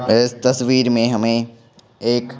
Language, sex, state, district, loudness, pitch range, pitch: Hindi, male, Bihar, Patna, -17 LUFS, 115-125 Hz, 120 Hz